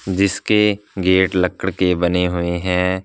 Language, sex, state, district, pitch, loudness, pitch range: Hindi, male, Punjab, Fazilka, 95 Hz, -18 LUFS, 90-95 Hz